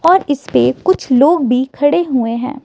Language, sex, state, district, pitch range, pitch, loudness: Hindi, female, Himachal Pradesh, Shimla, 250-320 Hz, 275 Hz, -14 LUFS